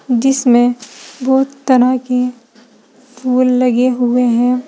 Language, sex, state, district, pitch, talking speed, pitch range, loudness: Hindi, female, Uttar Pradesh, Saharanpur, 250 Hz, 100 wpm, 245-255 Hz, -14 LUFS